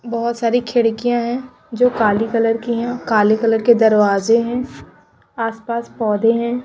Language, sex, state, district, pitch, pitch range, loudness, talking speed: Hindi, female, Punjab, Pathankot, 235 Hz, 225-240 Hz, -17 LUFS, 155 wpm